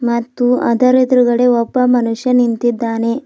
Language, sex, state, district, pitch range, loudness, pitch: Kannada, female, Karnataka, Bidar, 235-250 Hz, -14 LUFS, 245 Hz